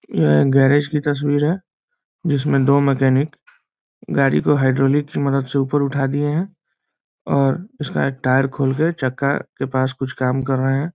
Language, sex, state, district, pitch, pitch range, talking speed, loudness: Hindi, male, Bihar, Muzaffarpur, 140 Hz, 135-145 Hz, 190 wpm, -19 LUFS